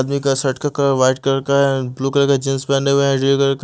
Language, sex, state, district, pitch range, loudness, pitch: Hindi, male, Odisha, Malkangiri, 135-140 Hz, -17 LUFS, 135 Hz